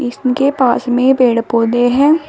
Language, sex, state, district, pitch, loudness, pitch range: Hindi, female, Uttar Pradesh, Shamli, 250 Hz, -13 LUFS, 245-270 Hz